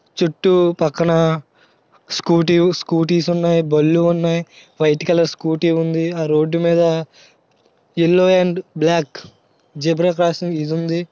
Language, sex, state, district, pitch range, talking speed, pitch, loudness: Telugu, male, Andhra Pradesh, Srikakulam, 160-175 Hz, 110 wpm, 170 Hz, -17 LUFS